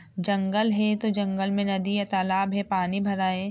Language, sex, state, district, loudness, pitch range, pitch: Hindi, female, Bihar, Jamui, -26 LUFS, 190-205 Hz, 195 Hz